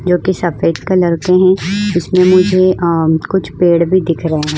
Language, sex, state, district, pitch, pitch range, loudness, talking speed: Hindi, female, Goa, North and South Goa, 180 Hz, 165-185 Hz, -12 LUFS, 195 wpm